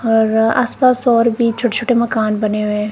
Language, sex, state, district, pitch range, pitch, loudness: Hindi, female, Punjab, Kapurthala, 215-245 Hz, 230 Hz, -15 LUFS